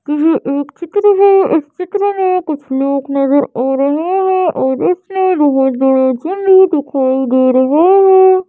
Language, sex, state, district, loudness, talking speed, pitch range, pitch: Hindi, female, Madhya Pradesh, Bhopal, -12 LUFS, 155 wpm, 270-375 Hz, 305 Hz